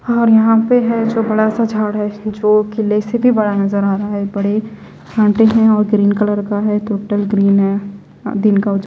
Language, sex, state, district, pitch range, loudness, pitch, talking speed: Hindi, female, Delhi, New Delhi, 205-220 Hz, -14 LUFS, 210 Hz, 205 wpm